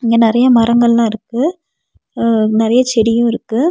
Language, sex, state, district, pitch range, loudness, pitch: Tamil, female, Tamil Nadu, Nilgiris, 225-250 Hz, -13 LUFS, 235 Hz